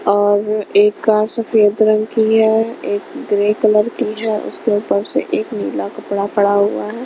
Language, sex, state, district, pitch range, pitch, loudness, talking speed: Hindi, female, Punjab, Kapurthala, 205-220 Hz, 215 Hz, -16 LUFS, 180 wpm